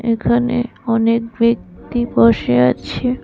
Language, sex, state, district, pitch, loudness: Bengali, female, Tripura, West Tripura, 230 Hz, -16 LUFS